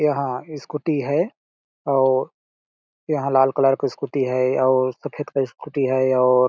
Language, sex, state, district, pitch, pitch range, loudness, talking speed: Hindi, male, Chhattisgarh, Balrampur, 135 Hz, 130-145 Hz, -21 LUFS, 155 wpm